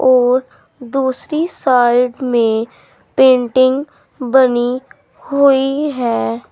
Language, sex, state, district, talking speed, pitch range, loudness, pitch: Hindi, female, Uttar Pradesh, Saharanpur, 75 wpm, 245-265 Hz, -14 LUFS, 255 Hz